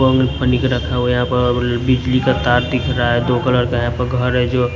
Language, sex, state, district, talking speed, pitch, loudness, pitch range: Hindi, male, Odisha, Nuapada, 240 wpm, 125 Hz, -16 LUFS, 120-125 Hz